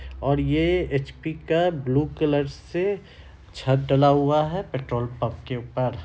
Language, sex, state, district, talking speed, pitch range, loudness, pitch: Hindi, male, Bihar, Samastipur, 150 wpm, 120-155 Hz, -24 LUFS, 140 Hz